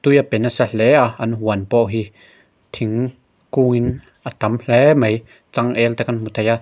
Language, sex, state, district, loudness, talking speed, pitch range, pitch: Mizo, male, Mizoram, Aizawl, -18 LUFS, 200 wpm, 110-125 Hz, 115 Hz